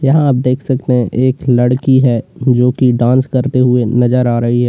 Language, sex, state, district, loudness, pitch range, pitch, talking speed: Hindi, male, Uttar Pradesh, Lalitpur, -12 LUFS, 120-130 Hz, 125 Hz, 215 wpm